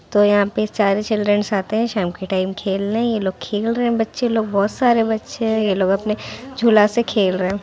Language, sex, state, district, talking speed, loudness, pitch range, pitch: Hindi, female, Bihar, Muzaffarpur, 235 wpm, -19 LUFS, 200-225 Hz, 210 Hz